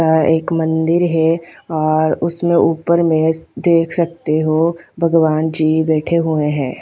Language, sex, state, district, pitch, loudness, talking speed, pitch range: Hindi, female, Haryana, Charkhi Dadri, 160 Hz, -16 LUFS, 140 wpm, 155-170 Hz